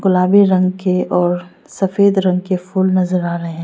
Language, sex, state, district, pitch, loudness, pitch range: Hindi, female, Arunachal Pradesh, Lower Dibang Valley, 185 Hz, -15 LUFS, 180-190 Hz